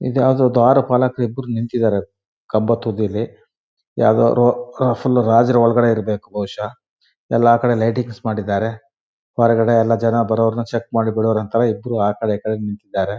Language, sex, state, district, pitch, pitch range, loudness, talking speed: Kannada, male, Karnataka, Shimoga, 115 Hz, 110-120 Hz, -17 LUFS, 140 wpm